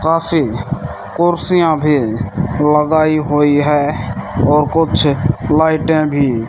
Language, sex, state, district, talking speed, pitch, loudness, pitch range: Hindi, male, Rajasthan, Bikaner, 90 wpm, 150 Hz, -14 LUFS, 140-155 Hz